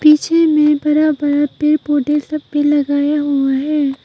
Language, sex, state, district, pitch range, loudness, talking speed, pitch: Hindi, female, Arunachal Pradesh, Papum Pare, 290-300 Hz, -15 LUFS, 165 wpm, 295 Hz